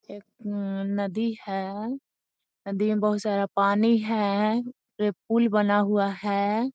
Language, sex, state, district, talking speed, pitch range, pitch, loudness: Magahi, female, Bihar, Gaya, 135 wpm, 200-225 Hz, 210 Hz, -26 LUFS